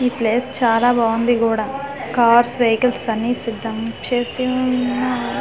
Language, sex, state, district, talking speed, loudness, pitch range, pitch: Telugu, female, Andhra Pradesh, Manyam, 135 wpm, -18 LUFS, 230-250 Hz, 240 Hz